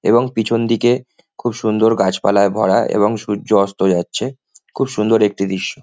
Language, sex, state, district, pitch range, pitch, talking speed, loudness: Bengali, male, West Bengal, Jhargram, 100-115 Hz, 110 Hz, 155 wpm, -17 LUFS